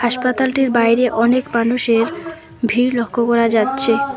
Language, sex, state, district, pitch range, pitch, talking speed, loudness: Bengali, female, West Bengal, Alipurduar, 230-255 Hz, 240 Hz, 115 wpm, -16 LUFS